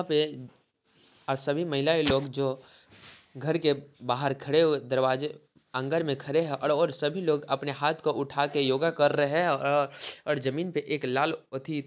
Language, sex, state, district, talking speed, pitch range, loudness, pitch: Hindi, male, Bihar, Sitamarhi, 175 wpm, 135-150 Hz, -28 LUFS, 145 Hz